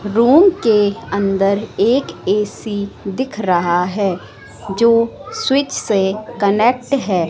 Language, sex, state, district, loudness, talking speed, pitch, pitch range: Hindi, female, Madhya Pradesh, Katni, -16 LUFS, 105 wpm, 210 Hz, 195-240 Hz